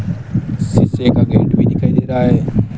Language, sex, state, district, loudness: Hindi, male, Rajasthan, Bikaner, -14 LUFS